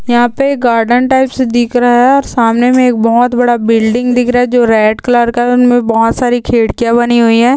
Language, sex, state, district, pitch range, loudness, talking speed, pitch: Hindi, female, Rajasthan, Churu, 230-245 Hz, -10 LUFS, 230 wpm, 240 Hz